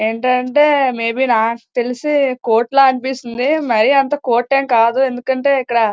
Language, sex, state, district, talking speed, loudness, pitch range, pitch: Telugu, female, Andhra Pradesh, Srikakulam, 100 wpm, -15 LUFS, 235-275 Hz, 255 Hz